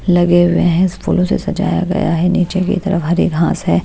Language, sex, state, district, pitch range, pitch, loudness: Hindi, female, Haryana, Jhajjar, 175-185 Hz, 180 Hz, -14 LUFS